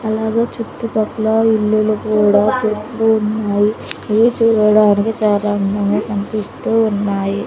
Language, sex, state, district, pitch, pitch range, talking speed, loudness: Telugu, female, Andhra Pradesh, Sri Satya Sai, 215 Hz, 205-220 Hz, 95 wpm, -15 LUFS